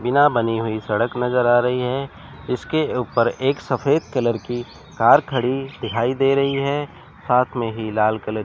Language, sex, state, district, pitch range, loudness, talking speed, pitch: Hindi, male, Chandigarh, Chandigarh, 115-135 Hz, -20 LUFS, 185 wpm, 125 Hz